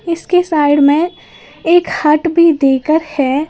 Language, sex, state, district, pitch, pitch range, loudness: Hindi, female, Uttar Pradesh, Lalitpur, 315 Hz, 290-335 Hz, -13 LUFS